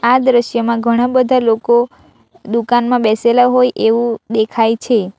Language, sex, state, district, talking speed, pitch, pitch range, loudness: Gujarati, female, Gujarat, Valsad, 125 wpm, 235 Hz, 225-245 Hz, -14 LUFS